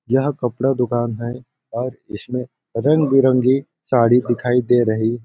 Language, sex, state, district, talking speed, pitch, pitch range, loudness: Hindi, male, Chhattisgarh, Balrampur, 135 wpm, 125 Hz, 120-130 Hz, -18 LUFS